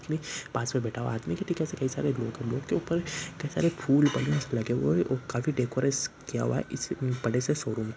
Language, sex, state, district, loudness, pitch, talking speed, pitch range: Hindi, male, Bihar, Gopalganj, -29 LUFS, 135 Hz, 235 wpm, 120-150 Hz